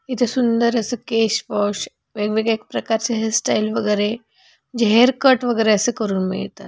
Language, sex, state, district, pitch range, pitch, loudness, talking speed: Marathi, female, Maharashtra, Pune, 210-240 Hz, 225 Hz, -19 LUFS, 125 wpm